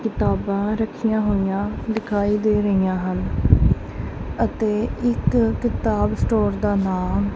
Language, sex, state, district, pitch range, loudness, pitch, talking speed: Punjabi, female, Punjab, Kapurthala, 195-220 Hz, -21 LUFS, 210 Hz, 105 wpm